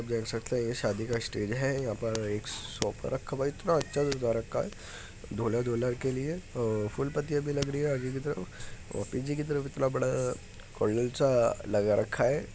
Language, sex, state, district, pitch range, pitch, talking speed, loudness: Hindi, male, Uttar Pradesh, Muzaffarnagar, 110-140 Hz, 120 Hz, 205 wpm, -31 LUFS